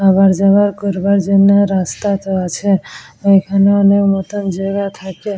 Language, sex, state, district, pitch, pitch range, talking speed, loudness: Bengali, female, West Bengal, Dakshin Dinajpur, 195 Hz, 195-200 Hz, 125 wpm, -14 LUFS